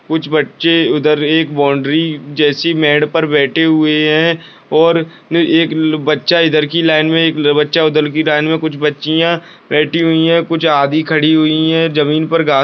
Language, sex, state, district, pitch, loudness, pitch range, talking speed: Hindi, male, Bihar, Purnia, 155 Hz, -12 LUFS, 150-165 Hz, 185 wpm